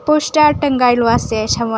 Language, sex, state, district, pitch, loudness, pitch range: Bengali, female, Assam, Hailakandi, 250 Hz, -14 LUFS, 230-300 Hz